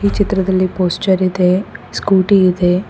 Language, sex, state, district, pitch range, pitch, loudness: Kannada, female, Karnataka, Koppal, 185-200 Hz, 190 Hz, -14 LUFS